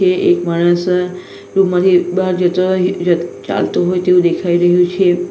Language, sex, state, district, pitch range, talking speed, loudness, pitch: Gujarati, female, Gujarat, Valsad, 175-185 Hz, 170 wpm, -14 LUFS, 180 Hz